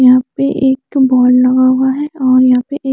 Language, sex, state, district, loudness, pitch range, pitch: Hindi, female, Chandigarh, Chandigarh, -11 LUFS, 255-270 Hz, 260 Hz